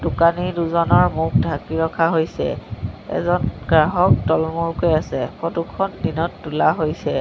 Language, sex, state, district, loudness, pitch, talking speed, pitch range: Assamese, female, Assam, Sonitpur, -19 LUFS, 165 Hz, 135 wpm, 160-170 Hz